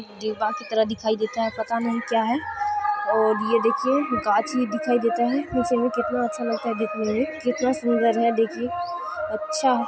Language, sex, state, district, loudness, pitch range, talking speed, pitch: Maithili, female, Bihar, Supaul, -24 LUFS, 220-255 Hz, 180 wpm, 235 Hz